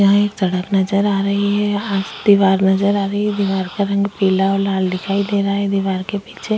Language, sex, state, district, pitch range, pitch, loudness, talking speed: Hindi, female, Chhattisgarh, Sukma, 195-205 Hz, 200 Hz, -17 LUFS, 245 wpm